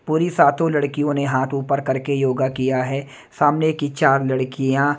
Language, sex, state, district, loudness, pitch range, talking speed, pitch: Hindi, male, Odisha, Nuapada, -20 LUFS, 130-145 Hz, 170 wpm, 140 Hz